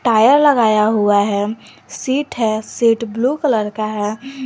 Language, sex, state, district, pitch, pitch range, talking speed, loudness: Hindi, female, Jharkhand, Garhwa, 225 Hz, 215-260 Hz, 150 wpm, -16 LUFS